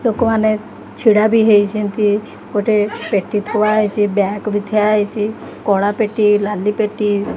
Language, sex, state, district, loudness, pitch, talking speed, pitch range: Odia, female, Odisha, Khordha, -16 LUFS, 210 Hz, 130 wpm, 205-215 Hz